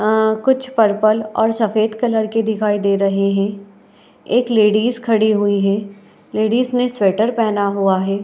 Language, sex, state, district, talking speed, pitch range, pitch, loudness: Hindi, female, Uttar Pradesh, Etah, 160 wpm, 200-225 Hz, 215 Hz, -17 LUFS